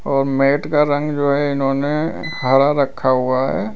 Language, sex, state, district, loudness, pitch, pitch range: Hindi, male, Uttar Pradesh, Lalitpur, -17 LUFS, 140 Hz, 135-150 Hz